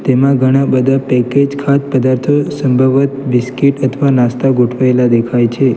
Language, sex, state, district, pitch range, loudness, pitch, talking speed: Gujarati, male, Gujarat, Valsad, 125-140 Hz, -12 LUFS, 130 Hz, 135 wpm